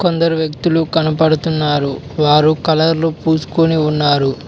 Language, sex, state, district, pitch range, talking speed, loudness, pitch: Telugu, male, Telangana, Mahabubabad, 150-165 Hz, 95 wpm, -15 LUFS, 155 Hz